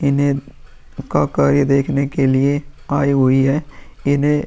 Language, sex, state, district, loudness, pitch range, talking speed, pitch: Hindi, male, Uttar Pradesh, Muzaffarnagar, -17 LUFS, 135-145 Hz, 150 wpm, 140 Hz